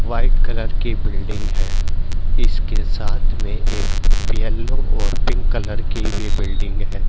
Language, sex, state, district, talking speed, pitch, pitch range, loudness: Hindi, male, Haryana, Jhajjar, 145 wpm, 95 Hz, 80-105 Hz, -24 LUFS